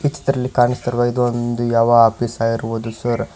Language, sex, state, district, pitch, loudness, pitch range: Kannada, male, Karnataka, Koppal, 120 Hz, -18 LUFS, 115-120 Hz